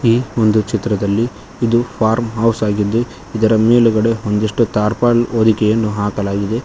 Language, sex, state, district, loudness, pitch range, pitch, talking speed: Kannada, male, Karnataka, Koppal, -16 LUFS, 105-115 Hz, 110 Hz, 115 wpm